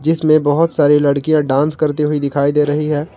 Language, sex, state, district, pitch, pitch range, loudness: Hindi, male, Jharkhand, Garhwa, 150 Hz, 145-155 Hz, -14 LUFS